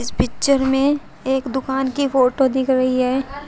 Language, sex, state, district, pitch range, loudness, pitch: Hindi, female, Uttar Pradesh, Shamli, 260-275 Hz, -19 LUFS, 265 Hz